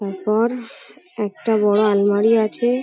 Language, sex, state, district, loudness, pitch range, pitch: Bengali, female, West Bengal, Paschim Medinipur, -18 LUFS, 205-230 Hz, 215 Hz